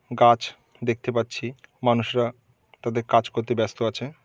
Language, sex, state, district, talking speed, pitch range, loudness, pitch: Bengali, male, West Bengal, North 24 Parganas, 125 wpm, 115-125 Hz, -24 LUFS, 120 Hz